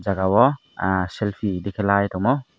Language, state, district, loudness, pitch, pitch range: Kokborok, Tripura, Dhalai, -21 LUFS, 100 Hz, 95-120 Hz